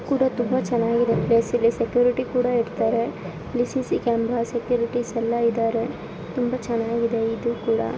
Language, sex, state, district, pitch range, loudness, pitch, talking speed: Kannada, female, Karnataka, Bijapur, 230-245 Hz, -23 LUFS, 235 Hz, 130 wpm